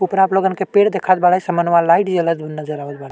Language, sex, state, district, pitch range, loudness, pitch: Bhojpuri, male, Uttar Pradesh, Deoria, 155-190 Hz, -16 LUFS, 180 Hz